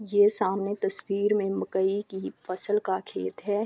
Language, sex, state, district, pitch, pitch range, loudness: Urdu, female, Andhra Pradesh, Anantapur, 200 Hz, 190-210 Hz, -27 LUFS